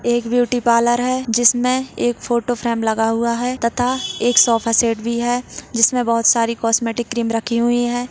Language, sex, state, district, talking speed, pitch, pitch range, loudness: Hindi, female, Chhattisgarh, Jashpur, 185 wpm, 240 Hz, 230-245 Hz, -17 LUFS